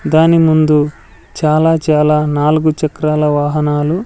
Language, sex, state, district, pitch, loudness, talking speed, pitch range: Telugu, male, Andhra Pradesh, Sri Satya Sai, 155 Hz, -13 LUFS, 105 wpm, 150-155 Hz